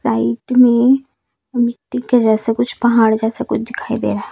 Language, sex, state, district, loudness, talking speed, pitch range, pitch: Hindi, female, Chhattisgarh, Raipur, -16 LUFS, 165 wpm, 225-250 Hz, 235 Hz